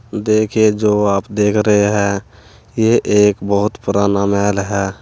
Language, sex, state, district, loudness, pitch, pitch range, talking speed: Hindi, male, Uttar Pradesh, Saharanpur, -15 LUFS, 105 Hz, 100-105 Hz, 145 wpm